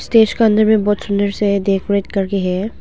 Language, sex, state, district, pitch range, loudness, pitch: Hindi, female, Arunachal Pradesh, Longding, 195-215 Hz, -16 LUFS, 200 Hz